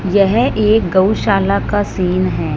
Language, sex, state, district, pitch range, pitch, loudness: Hindi, male, Punjab, Fazilka, 185-210 Hz, 195 Hz, -14 LUFS